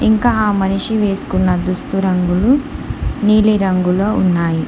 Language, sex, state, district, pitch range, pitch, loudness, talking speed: Telugu, female, Telangana, Hyderabad, 180-215 Hz, 195 Hz, -15 LUFS, 90 wpm